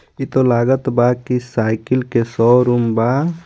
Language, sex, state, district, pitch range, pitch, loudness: Bhojpuri, male, Jharkhand, Palamu, 120-130 Hz, 125 Hz, -16 LUFS